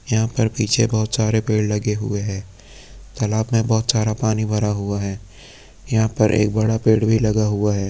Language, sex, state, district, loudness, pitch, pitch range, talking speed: Hindi, male, Chhattisgarh, Rajnandgaon, -19 LUFS, 110 Hz, 105-110 Hz, 190 wpm